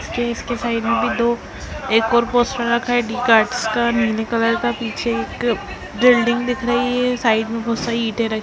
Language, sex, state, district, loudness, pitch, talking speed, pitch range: Hindi, female, Bihar, Sitamarhi, -18 LUFS, 235 Hz, 190 wpm, 230-240 Hz